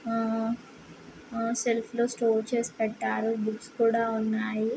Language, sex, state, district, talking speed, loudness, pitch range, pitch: Telugu, female, Andhra Pradesh, Srikakulam, 125 wpm, -29 LUFS, 220-235 Hz, 230 Hz